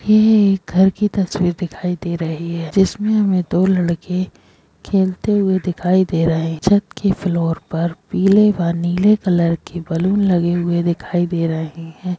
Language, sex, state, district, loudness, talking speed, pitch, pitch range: Hindi, female, Chhattisgarh, Sukma, -17 LUFS, 170 wpm, 180 Hz, 170-195 Hz